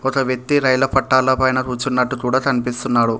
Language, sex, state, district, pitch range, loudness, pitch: Telugu, male, Telangana, Hyderabad, 125-135 Hz, -18 LUFS, 130 Hz